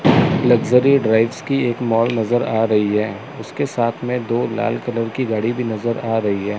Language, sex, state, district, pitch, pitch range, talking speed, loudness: Hindi, male, Chandigarh, Chandigarh, 115 Hz, 110-125 Hz, 200 wpm, -18 LUFS